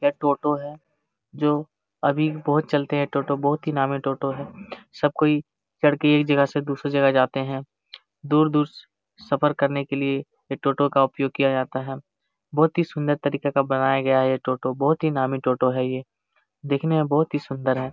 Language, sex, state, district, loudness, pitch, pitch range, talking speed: Hindi, male, Jharkhand, Jamtara, -23 LUFS, 140 Hz, 135-150 Hz, 205 wpm